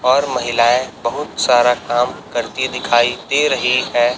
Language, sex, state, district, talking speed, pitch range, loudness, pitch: Hindi, male, Chhattisgarh, Raipur, 145 wpm, 120-125 Hz, -16 LUFS, 120 Hz